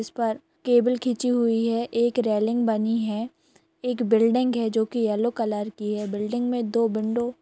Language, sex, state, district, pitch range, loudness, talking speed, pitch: Hindi, female, Bihar, Madhepura, 220-245 Hz, -24 LUFS, 195 wpm, 230 Hz